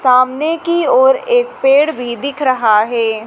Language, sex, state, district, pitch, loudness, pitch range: Hindi, female, Madhya Pradesh, Dhar, 275 Hz, -13 LUFS, 240-340 Hz